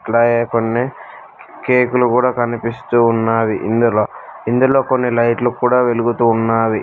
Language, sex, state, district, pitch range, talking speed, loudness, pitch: Telugu, male, Telangana, Hyderabad, 115-125 Hz, 115 wpm, -15 LUFS, 120 Hz